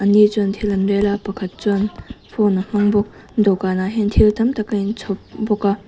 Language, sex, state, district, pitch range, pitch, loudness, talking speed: Mizo, female, Mizoram, Aizawl, 200-210 Hz, 205 Hz, -18 LUFS, 205 wpm